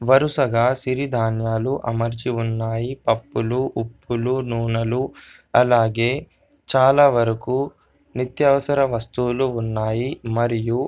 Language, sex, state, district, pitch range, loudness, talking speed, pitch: Telugu, male, Telangana, Komaram Bheem, 115-135 Hz, -21 LUFS, 85 wpm, 120 Hz